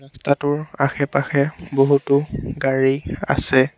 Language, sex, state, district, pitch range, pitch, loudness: Assamese, male, Assam, Sonitpur, 135-145 Hz, 140 Hz, -20 LUFS